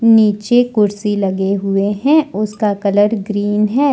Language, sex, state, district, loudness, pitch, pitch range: Hindi, male, Jharkhand, Deoghar, -15 LUFS, 210 Hz, 205-225 Hz